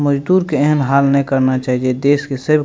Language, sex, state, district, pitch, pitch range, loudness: Maithili, male, Bihar, Madhepura, 140 Hz, 135-145 Hz, -15 LUFS